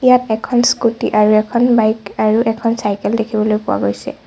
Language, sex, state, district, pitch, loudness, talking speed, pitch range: Assamese, female, Assam, Sonitpur, 220 Hz, -15 LUFS, 170 wpm, 215-230 Hz